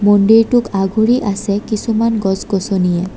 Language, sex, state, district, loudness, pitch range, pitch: Assamese, female, Assam, Kamrup Metropolitan, -14 LUFS, 195-225 Hz, 205 Hz